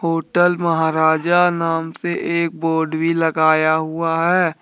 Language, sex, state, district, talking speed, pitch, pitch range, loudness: Hindi, male, Jharkhand, Deoghar, 130 wpm, 165 Hz, 160-170 Hz, -18 LUFS